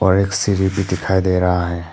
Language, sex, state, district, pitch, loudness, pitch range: Hindi, male, Arunachal Pradesh, Papum Pare, 95 Hz, -18 LUFS, 90-95 Hz